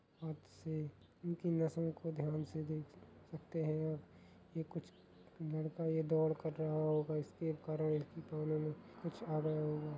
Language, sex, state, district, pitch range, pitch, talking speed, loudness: Hindi, male, Uttar Pradesh, Ghazipur, 150-160 Hz, 155 Hz, 160 wpm, -41 LUFS